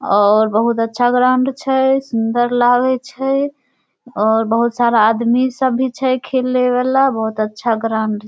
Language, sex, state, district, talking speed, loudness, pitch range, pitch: Maithili, female, Bihar, Samastipur, 150 wpm, -15 LUFS, 225-260 Hz, 245 Hz